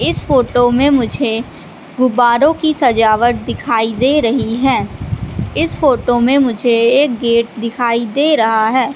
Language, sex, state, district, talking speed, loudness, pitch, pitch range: Hindi, female, Madhya Pradesh, Katni, 140 wpm, -14 LUFS, 245 Hz, 235-270 Hz